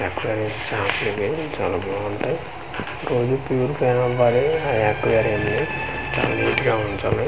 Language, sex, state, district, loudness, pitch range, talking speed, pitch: Telugu, male, Andhra Pradesh, Manyam, -22 LUFS, 110-125 Hz, 125 wpm, 125 Hz